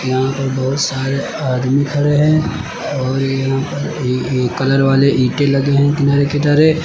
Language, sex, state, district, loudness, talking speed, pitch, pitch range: Hindi, male, Uttar Pradesh, Lucknow, -15 LUFS, 175 wpm, 135 Hz, 130-145 Hz